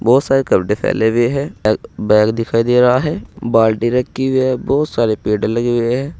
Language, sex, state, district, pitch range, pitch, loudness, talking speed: Hindi, male, Uttar Pradesh, Saharanpur, 110-130 Hz, 120 Hz, -15 LUFS, 205 wpm